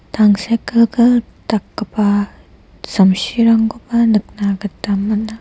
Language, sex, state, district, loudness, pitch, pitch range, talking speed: Garo, female, Meghalaya, West Garo Hills, -15 LUFS, 220 Hz, 205-230 Hz, 65 wpm